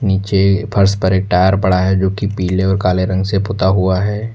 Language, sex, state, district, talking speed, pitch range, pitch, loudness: Hindi, male, Uttar Pradesh, Lucknow, 235 wpm, 95-100 Hz, 95 Hz, -15 LUFS